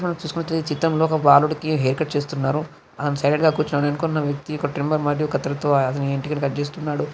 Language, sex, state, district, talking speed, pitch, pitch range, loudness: Telugu, male, Andhra Pradesh, Chittoor, 195 wpm, 150 Hz, 145-155 Hz, -21 LUFS